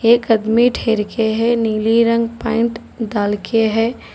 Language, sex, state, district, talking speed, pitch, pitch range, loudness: Hindi, female, Telangana, Hyderabad, 160 wpm, 225 Hz, 220-230 Hz, -17 LUFS